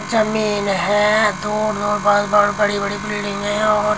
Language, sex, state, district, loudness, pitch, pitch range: Hindi, female, Uttar Pradesh, Muzaffarnagar, -18 LUFS, 210 Hz, 205-215 Hz